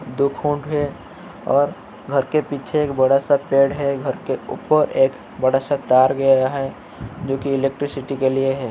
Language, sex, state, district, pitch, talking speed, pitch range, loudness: Hindi, male, Uttar Pradesh, Jyotiba Phule Nagar, 135 Hz, 180 wpm, 135-145 Hz, -19 LUFS